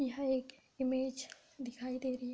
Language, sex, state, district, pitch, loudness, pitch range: Hindi, female, Uttar Pradesh, Budaun, 260 Hz, -39 LUFS, 255-265 Hz